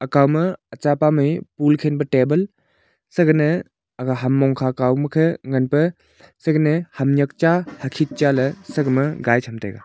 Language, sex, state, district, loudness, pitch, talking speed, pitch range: Wancho, male, Arunachal Pradesh, Longding, -19 LUFS, 145 Hz, 150 wpm, 130-155 Hz